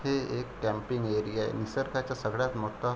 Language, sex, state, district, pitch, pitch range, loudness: Marathi, male, Maharashtra, Pune, 120 Hz, 110-130 Hz, -32 LUFS